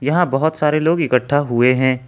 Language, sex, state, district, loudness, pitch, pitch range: Hindi, male, Jharkhand, Ranchi, -16 LUFS, 145 Hz, 130-155 Hz